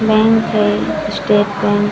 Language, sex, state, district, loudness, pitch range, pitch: Hindi, female, Chhattisgarh, Balrampur, -15 LUFS, 205-220 Hz, 210 Hz